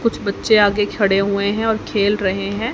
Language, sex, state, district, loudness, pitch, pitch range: Hindi, female, Haryana, Jhajjar, -17 LUFS, 205 Hz, 200-220 Hz